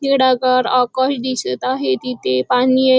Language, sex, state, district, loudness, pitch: Marathi, female, Maharashtra, Chandrapur, -17 LUFS, 255 Hz